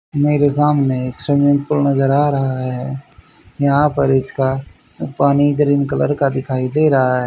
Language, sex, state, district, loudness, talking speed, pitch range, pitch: Hindi, male, Haryana, Charkhi Dadri, -16 LUFS, 165 wpm, 130-145 Hz, 140 Hz